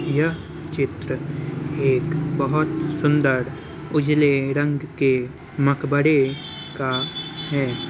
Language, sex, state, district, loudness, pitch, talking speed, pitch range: Hindi, male, Bihar, Muzaffarpur, -22 LUFS, 145 Hz, 85 wpm, 135-155 Hz